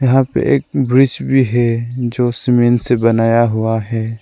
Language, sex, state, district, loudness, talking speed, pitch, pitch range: Hindi, male, Arunachal Pradesh, Lower Dibang Valley, -14 LUFS, 170 wpm, 120 Hz, 115-130 Hz